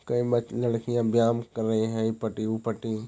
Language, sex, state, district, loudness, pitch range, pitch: Hindi, male, Bihar, Jahanabad, -27 LUFS, 110-120 Hz, 115 Hz